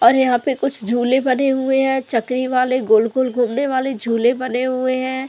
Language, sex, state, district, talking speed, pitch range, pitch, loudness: Hindi, female, Goa, North and South Goa, 205 wpm, 245-265 Hz, 255 Hz, -18 LUFS